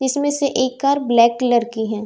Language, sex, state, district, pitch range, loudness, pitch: Hindi, female, Bihar, Katihar, 235-280 Hz, -17 LUFS, 250 Hz